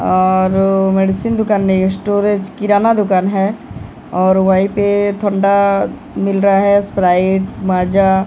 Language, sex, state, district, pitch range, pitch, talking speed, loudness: Hindi, female, Odisha, Sambalpur, 190-205 Hz, 195 Hz, 140 wpm, -14 LUFS